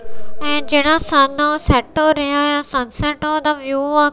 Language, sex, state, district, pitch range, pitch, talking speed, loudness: Punjabi, female, Punjab, Kapurthala, 275-300 Hz, 295 Hz, 115 wpm, -15 LUFS